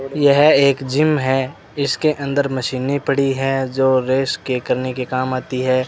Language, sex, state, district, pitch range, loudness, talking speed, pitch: Hindi, male, Rajasthan, Bikaner, 130-140 Hz, -18 LUFS, 175 wpm, 135 Hz